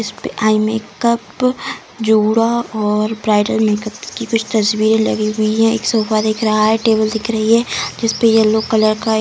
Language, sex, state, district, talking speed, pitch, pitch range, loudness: Hindi, female, Bihar, Samastipur, 175 wpm, 220 Hz, 215-225 Hz, -15 LUFS